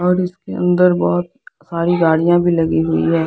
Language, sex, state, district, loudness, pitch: Hindi, female, Bihar, Patna, -16 LUFS, 170 Hz